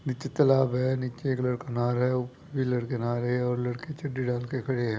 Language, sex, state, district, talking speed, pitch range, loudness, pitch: Hindi, male, Bihar, Begusarai, 230 wpm, 125-130 Hz, -28 LUFS, 125 Hz